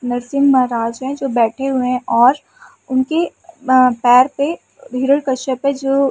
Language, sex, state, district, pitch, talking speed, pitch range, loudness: Hindi, female, Uttar Pradesh, Muzaffarnagar, 265 Hz, 155 wpm, 250-280 Hz, -16 LUFS